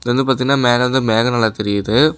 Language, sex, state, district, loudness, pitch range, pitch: Tamil, male, Tamil Nadu, Namakkal, -15 LUFS, 110-135 Hz, 125 Hz